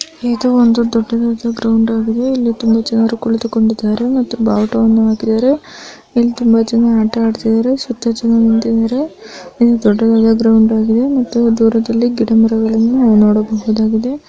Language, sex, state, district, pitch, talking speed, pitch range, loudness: Kannada, female, Karnataka, Dharwad, 230 Hz, 110 wpm, 225-240 Hz, -13 LUFS